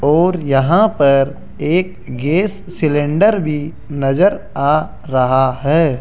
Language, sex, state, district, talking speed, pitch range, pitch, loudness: Hindi, male, Rajasthan, Jaipur, 110 wpm, 140-175 Hz, 150 Hz, -15 LUFS